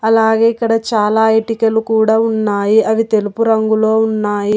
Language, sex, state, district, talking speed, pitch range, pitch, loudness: Telugu, female, Telangana, Hyderabad, 130 wpm, 215-225 Hz, 220 Hz, -13 LUFS